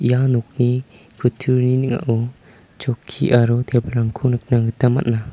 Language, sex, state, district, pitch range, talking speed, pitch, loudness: Garo, male, Meghalaya, South Garo Hills, 115-125 Hz, 115 wpm, 125 Hz, -19 LUFS